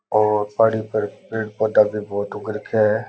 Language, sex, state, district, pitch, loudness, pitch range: Rajasthani, male, Rajasthan, Nagaur, 105 Hz, -21 LUFS, 105-110 Hz